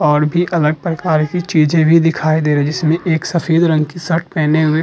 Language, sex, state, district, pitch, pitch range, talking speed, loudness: Hindi, male, Uttar Pradesh, Muzaffarnagar, 160 Hz, 155-170 Hz, 250 wpm, -15 LUFS